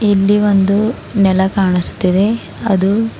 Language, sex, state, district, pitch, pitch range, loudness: Kannada, female, Karnataka, Bidar, 200 Hz, 190-210 Hz, -14 LUFS